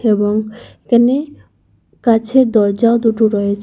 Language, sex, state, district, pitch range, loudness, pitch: Bengali, female, Assam, Hailakandi, 210-235 Hz, -14 LUFS, 225 Hz